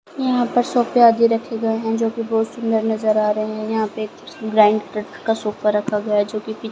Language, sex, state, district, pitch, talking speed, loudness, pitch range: Hindi, female, Haryana, Jhajjar, 220 Hz, 240 wpm, -19 LUFS, 215-230 Hz